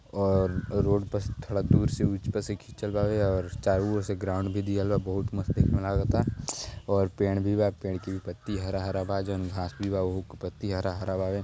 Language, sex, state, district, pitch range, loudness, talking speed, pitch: Bhojpuri, male, Uttar Pradesh, Gorakhpur, 95-105 Hz, -29 LUFS, 245 wpm, 100 Hz